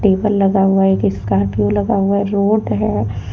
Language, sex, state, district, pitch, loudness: Hindi, female, Jharkhand, Deoghar, 190 Hz, -15 LUFS